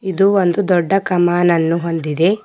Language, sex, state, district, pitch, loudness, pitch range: Kannada, female, Karnataka, Bidar, 175 Hz, -15 LUFS, 170-195 Hz